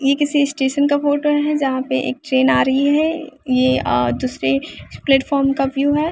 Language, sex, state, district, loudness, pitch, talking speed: Hindi, female, Bihar, West Champaran, -17 LUFS, 275 Hz, 195 wpm